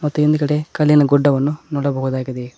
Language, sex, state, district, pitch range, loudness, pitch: Kannada, male, Karnataka, Koppal, 135-150 Hz, -17 LUFS, 145 Hz